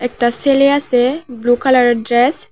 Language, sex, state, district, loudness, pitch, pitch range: Bengali, female, Tripura, West Tripura, -14 LUFS, 245 Hz, 240-275 Hz